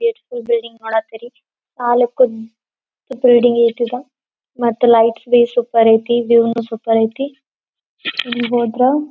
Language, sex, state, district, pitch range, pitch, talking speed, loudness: Kannada, female, Karnataka, Belgaum, 230-255 Hz, 240 Hz, 105 wpm, -15 LUFS